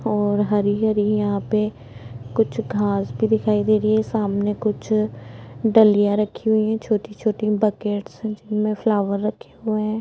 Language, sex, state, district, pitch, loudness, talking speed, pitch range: Hindi, female, Uttar Pradesh, Budaun, 210 Hz, -21 LUFS, 150 wpm, 205-215 Hz